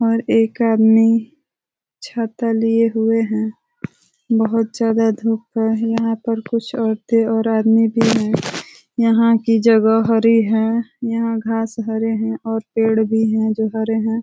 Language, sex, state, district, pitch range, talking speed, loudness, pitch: Hindi, female, Uttar Pradesh, Ghazipur, 220-230 Hz, 145 wpm, -17 LUFS, 225 Hz